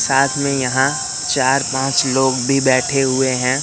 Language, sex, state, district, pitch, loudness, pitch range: Hindi, male, Madhya Pradesh, Katni, 135 Hz, -16 LUFS, 130-135 Hz